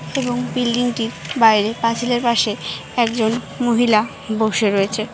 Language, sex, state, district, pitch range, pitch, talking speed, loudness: Bengali, female, West Bengal, Malda, 215-240 Hz, 230 Hz, 105 wpm, -18 LUFS